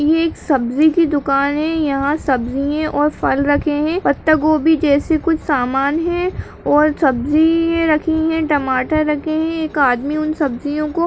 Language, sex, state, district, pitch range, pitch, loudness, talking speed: Hindi, female, Uttarakhand, Uttarkashi, 285-320 Hz, 305 Hz, -16 LUFS, 170 wpm